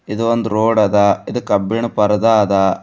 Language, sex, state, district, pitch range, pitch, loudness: Kannada, male, Karnataka, Bidar, 100-115 Hz, 105 Hz, -15 LUFS